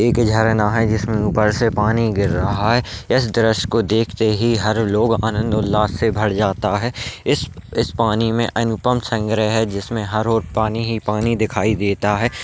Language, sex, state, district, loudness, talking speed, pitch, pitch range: Hindi, male, Rajasthan, Nagaur, -18 LUFS, 195 wpm, 110 Hz, 105-115 Hz